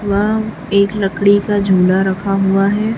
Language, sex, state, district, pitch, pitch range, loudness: Hindi, female, Chhattisgarh, Raipur, 200 Hz, 195-205 Hz, -14 LUFS